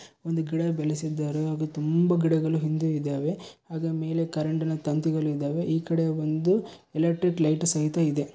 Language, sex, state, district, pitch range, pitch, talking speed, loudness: Kannada, male, Karnataka, Bellary, 155-165 Hz, 160 Hz, 145 wpm, -27 LUFS